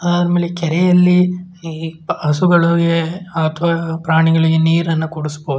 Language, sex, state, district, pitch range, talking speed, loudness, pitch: Kannada, male, Karnataka, Shimoga, 160-175 Hz, 75 wpm, -15 LUFS, 165 Hz